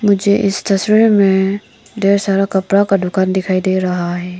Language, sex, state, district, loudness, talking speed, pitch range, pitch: Hindi, female, Arunachal Pradesh, Papum Pare, -14 LUFS, 175 wpm, 185-200 Hz, 195 Hz